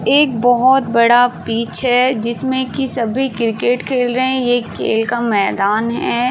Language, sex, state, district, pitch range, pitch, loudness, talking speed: Hindi, female, Uttar Pradesh, Varanasi, 235-255 Hz, 245 Hz, -15 LUFS, 160 wpm